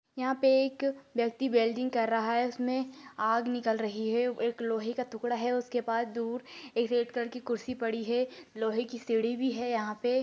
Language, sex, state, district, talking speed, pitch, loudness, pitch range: Hindi, female, Maharashtra, Dhule, 205 wpm, 240 Hz, -31 LUFS, 230-255 Hz